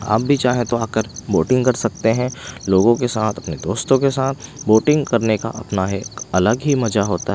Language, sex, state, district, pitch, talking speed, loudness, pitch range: Hindi, male, Punjab, Pathankot, 115 Hz, 210 wpm, -18 LUFS, 105-130 Hz